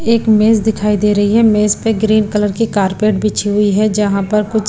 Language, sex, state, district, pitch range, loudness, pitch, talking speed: Hindi, female, Punjab, Pathankot, 205-220 Hz, -13 LUFS, 210 Hz, 230 wpm